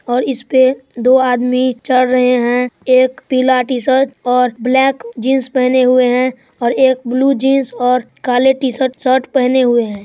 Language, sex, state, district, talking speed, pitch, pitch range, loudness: Hindi, female, Bihar, Supaul, 165 wpm, 255 Hz, 250-260 Hz, -13 LUFS